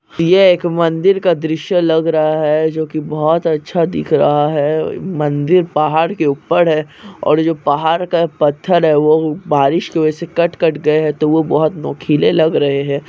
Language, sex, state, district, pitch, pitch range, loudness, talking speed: Hindi, male, Chhattisgarh, Bastar, 155 Hz, 150-170 Hz, -14 LUFS, 190 wpm